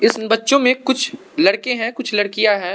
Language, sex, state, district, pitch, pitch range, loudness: Hindi, male, Arunachal Pradesh, Lower Dibang Valley, 250 Hz, 210-275 Hz, -17 LUFS